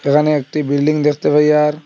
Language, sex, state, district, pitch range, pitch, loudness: Bengali, male, Assam, Hailakandi, 145-150 Hz, 150 Hz, -15 LUFS